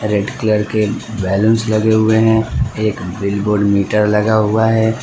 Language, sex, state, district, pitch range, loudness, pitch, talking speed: Hindi, male, Gujarat, Valsad, 105-110 Hz, -15 LUFS, 110 Hz, 165 wpm